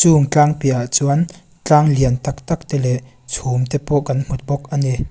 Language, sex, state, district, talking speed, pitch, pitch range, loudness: Mizo, female, Mizoram, Aizawl, 225 wpm, 140 Hz, 130-150 Hz, -17 LUFS